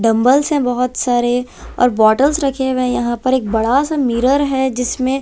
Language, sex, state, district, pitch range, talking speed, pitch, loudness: Hindi, female, Punjab, Kapurthala, 240-270 Hz, 185 wpm, 250 Hz, -15 LUFS